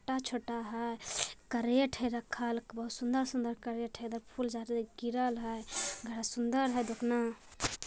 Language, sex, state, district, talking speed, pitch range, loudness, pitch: Magahi, female, Bihar, Jamui, 130 wpm, 230-245 Hz, -36 LUFS, 235 Hz